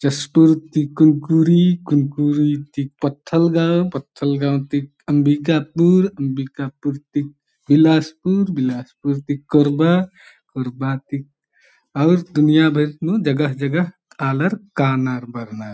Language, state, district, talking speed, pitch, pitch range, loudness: Kurukh, Chhattisgarh, Jashpur, 105 wpm, 145 Hz, 140-160 Hz, -18 LUFS